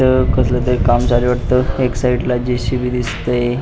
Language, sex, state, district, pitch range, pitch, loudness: Marathi, male, Maharashtra, Pune, 120-125 Hz, 125 Hz, -16 LUFS